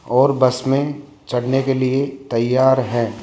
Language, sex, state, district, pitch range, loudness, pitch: Hindi, male, Rajasthan, Jaipur, 125-135 Hz, -18 LUFS, 130 Hz